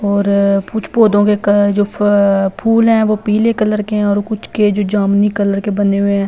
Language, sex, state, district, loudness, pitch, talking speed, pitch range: Hindi, female, Delhi, New Delhi, -13 LUFS, 205 Hz, 210 wpm, 200-215 Hz